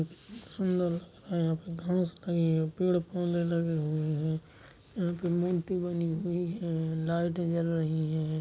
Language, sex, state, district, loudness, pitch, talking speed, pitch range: Hindi, male, Uttar Pradesh, Jalaun, -31 LUFS, 170 Hz, 150 wpm, 160-175 Hz